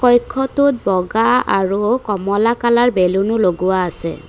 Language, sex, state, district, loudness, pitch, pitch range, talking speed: Assamese, female, Assam, Kamrup Metropolitan, -16 LUFS, 215 Hz, 190-245 Hz, 110 wpm